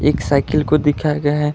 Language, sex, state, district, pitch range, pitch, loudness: Hindi, male, Karnataka, Bangalore, 145-150 Hz, 150 Hz, -17 LUFS